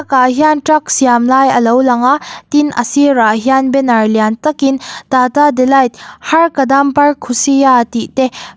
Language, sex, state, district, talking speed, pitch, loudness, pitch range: Mizo, female, Mizoram, Aizawl, 180 wpm, 265 Hz, -11 LUFS, 250-290 Hz